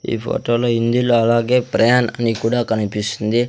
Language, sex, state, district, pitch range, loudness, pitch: Telugu, male, Andhra Pradesh, Sri Satya Sai, 115-120 Hz, -17 LUFS, 115 Hz